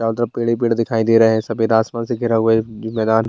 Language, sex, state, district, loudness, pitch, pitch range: Hindi, male, Bihar, Bhagalpur, -17 LUFS, 115 Hz, 110-115 Hz